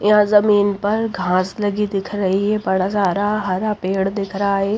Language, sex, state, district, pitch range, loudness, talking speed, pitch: Hindi, female, Bihar, Patna, 195-210 Hz, -18 LUFS, 190 wpm, 205 Hz